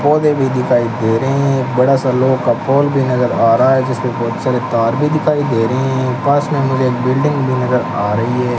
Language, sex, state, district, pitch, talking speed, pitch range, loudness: Hindi, male, Rajasthan, Bikaner, 130 Hz, 245 wpm, 120-135 Hz, -14 LUFS